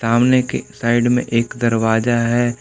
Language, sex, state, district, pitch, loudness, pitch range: Hindi, male, Jharkhand, Palamu, 120 Hz, -17 LUFS, 115-120 Hz